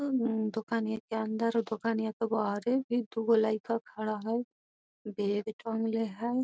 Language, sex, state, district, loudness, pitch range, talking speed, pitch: Magahi, female, Bihar, Gaya, -32 LUFS, 220-230 Hz, 120 wpm, 225 Hz